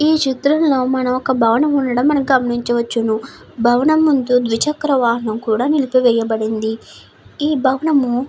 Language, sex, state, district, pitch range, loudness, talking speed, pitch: Telugu, female, Andhra Pradesh, Anantapur, 235-285 Hz, -16 LUFS, 115 wpm, 255 Hz